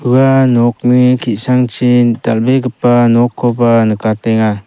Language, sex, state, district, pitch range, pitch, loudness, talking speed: Garo, male, Meghalaya, South Garo Hills, 115-125 Hz, 120 Hz, -11 LUFS, 75 wpm